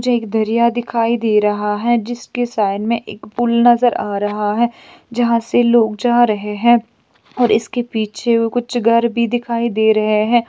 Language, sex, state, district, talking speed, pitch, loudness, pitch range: Hindi, female, Bihar, Bhagalpur, 170 wpm, 235 Hz, -16 LUFS, 220-240 Hz